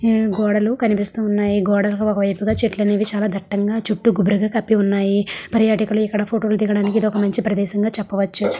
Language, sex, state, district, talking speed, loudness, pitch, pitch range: Telugu, female, Andhra Pradesh, Srikakulam, 180 wpm, -18 LUFS, 210 Hz, 205-215 Hz